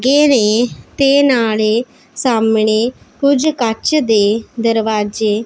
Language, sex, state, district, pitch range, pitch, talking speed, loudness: Punjabi, female, Punjab, Pathankot, 220-275 Hz, 230 Hz, 90 wpm, -14 LUFS